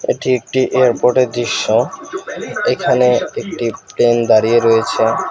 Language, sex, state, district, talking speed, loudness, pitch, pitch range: Bengali, male, West Bengal, Alipurduar, 100 wpm, -15 LUFS, 120 Hz, 115-125 Hz